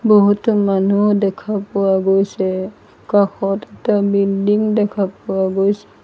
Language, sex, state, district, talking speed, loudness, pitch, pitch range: Assamese, female, Assam, Sonitpur, 110 wpm, -17 LUFS, 200 Hz, 195-210 Hz